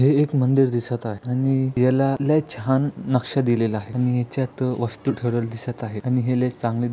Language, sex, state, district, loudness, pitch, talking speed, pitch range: Marathi, male, Maharashtra, Aurangabad, -22 LUFS, 125 Hz, 190 wpm, 120-135 Hz